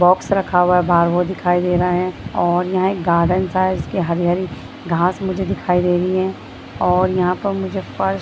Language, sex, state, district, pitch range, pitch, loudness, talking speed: Hindi, female, Bihar, Bhagalpur, 175-185 Hz, 180 Hz, -18 LUFS, 210 wpm